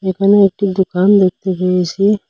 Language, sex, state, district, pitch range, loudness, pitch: Bengali, male, Assam, Hailakandi, 185-200 Hz, -14 LUFS, 190 Hz